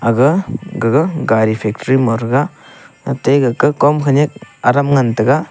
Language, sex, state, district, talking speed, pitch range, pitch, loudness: Wancho, male, Arunachal Pradesh, Longding, 150 wpm, 115-150 Hz, 135 Hz, -14 LUFS